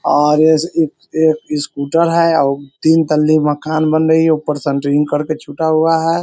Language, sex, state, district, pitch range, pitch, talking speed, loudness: Hindi, male, Bihar, Sitamarhi, 150-160 Hz, 155 Hz, 185 wpm, -14 LUFS